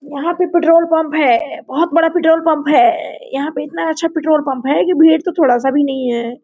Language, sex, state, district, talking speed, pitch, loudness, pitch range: Hindi, female, Jharkhand, Sahebganj, 225 wpm, 320 Hz, -14 LUFS, 280-330 Hz